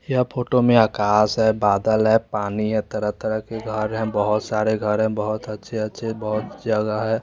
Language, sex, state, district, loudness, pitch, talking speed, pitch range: Hindi, male, Chandigarh, Chandigarh, -21 LUFS, 110 Hz, 190 wpm, 105-110 Hz